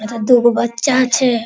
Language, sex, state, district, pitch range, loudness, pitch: Maithili, female, Bihar, Araria, 235-255 Hz, -14 LUFS, 240 Hz